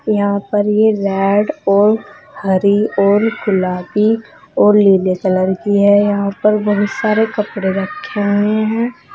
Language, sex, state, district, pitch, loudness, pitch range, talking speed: Hindi, female, Uttar Pradesh, Saharanpur, 205 Hz, -14 LUFS, 200-215 Hz, 140 wpm